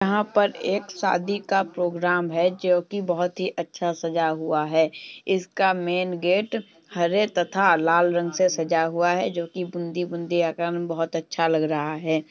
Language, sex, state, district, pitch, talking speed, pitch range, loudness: Hindi, female, Uttar Pradesh, Muzaffarnagar, 175 Hz, 175 wpm, 165-185 Hz, -24 LUFS